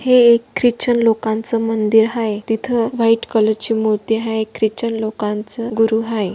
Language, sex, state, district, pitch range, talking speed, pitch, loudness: Marathi, female, Maharashtra, Dhule, 220-230 Hz, 140 wpm, 225 Hz, -17 LUFS